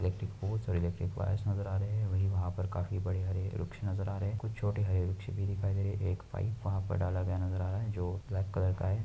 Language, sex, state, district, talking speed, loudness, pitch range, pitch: Hindi, male, Uttar Pradesh, Hamirpur, 285 wpm, -35 LUFS, 95-100 Hz, 95 Hz